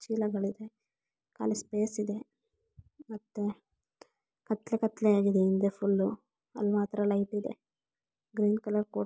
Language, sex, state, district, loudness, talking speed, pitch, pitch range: Kannada, female, Karnataka, Belgaum, -31 LUFS, 120 wpm, 210 Hz, 200-220 Hz